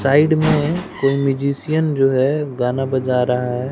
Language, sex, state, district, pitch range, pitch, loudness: Hindi, male, Bihar, West Champaran, 130-150 Hz, 135 Hz, -18 LUFS